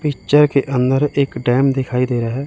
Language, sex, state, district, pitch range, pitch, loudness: Hindi, male, Chandigarh, Chandigarh, 125-140 Hz, 135 Hz, -16 LUFS